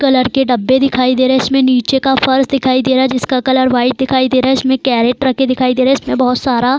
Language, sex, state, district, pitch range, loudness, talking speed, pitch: Hindi, female, Bihar, Darbhanga, 255-265 Hz, -12 LUFS, 290 wpm, 260 Hz